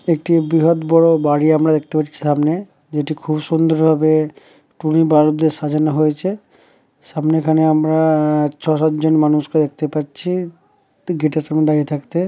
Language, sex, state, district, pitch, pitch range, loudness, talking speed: Bengali, male, West Bengal, Dakshin Dinajpur, 155 Hz, 150-160 Hz, -16 LUFS, 145 wpm